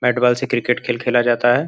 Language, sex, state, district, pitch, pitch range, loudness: Hindi, male, Uttar Pradesh, Gorakhpur, 120 Hz, 120-125 Hz, -18 LUFS